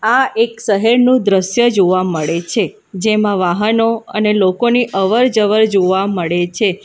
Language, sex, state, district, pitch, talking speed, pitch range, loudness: Gujarati, female, Gujarat, Valsad, 205 Hz, 130 wpm, 185-225 Hz, -14 LUFS